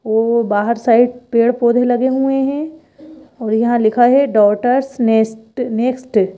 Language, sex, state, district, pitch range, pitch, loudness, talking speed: Hindi, female, Madhya Pradesh, Bhopal, 225-260 Hz, 240 Hz, -15 LUFS, 140 wpm